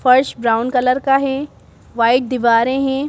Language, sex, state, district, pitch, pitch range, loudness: Hindi, female, Madhya Pradesh, Bhopal, 255 Hz, 235-270 Hz, -16 LUFS